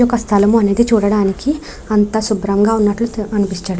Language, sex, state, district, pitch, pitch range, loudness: Telugu, female, Andhra Pradesh, Krishna, 210 Hz, 205-230 Hz, -15 LUFS